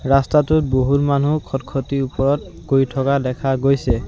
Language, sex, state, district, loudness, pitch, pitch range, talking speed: Assamese, male, Assam, Sonitpur, -18 LUFS, 135 Hz, 135-140 Hz, 130 wpm